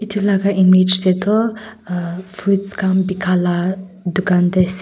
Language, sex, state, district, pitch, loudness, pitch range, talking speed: Nagamese, female, Nagaland, Kohima, 185 Hz, -16 LUFS, 180-200 Hz, 160 wpm